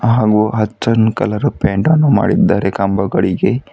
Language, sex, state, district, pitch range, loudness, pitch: Kannada, female, Karnataka, Bidar, 100-115 Hz, -14 LUFS, 105 Hz